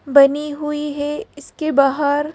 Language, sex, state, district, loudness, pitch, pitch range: Hindi, female, Madhya Pradesh, Bhopal, -18 LUFS, 290 Hz, 285-295 Hz